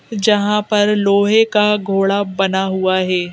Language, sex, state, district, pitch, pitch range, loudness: Hindi, female, Madhya Pradesh, Bhopal, 200 Hz, 190-210 Hz, -15 LUFS